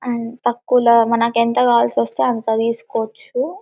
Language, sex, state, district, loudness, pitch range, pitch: Telugu, female, Telangana, Karimnagar, -17 LUFS, 225-245 Hz, 230 Hz